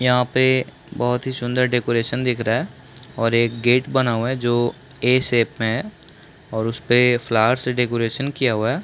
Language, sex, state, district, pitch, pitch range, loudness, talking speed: Hindi, male, Chhattisgarh, Bastar, 125 Hz, 115-130 Hz, -20 LUFS, 190 wpm